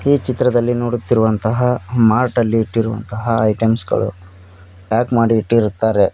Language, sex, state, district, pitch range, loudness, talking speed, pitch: Kannada, male, Karnataka, Koppal, 110-120 Hz, -16 LUFS, 100 wpm, 115 Hz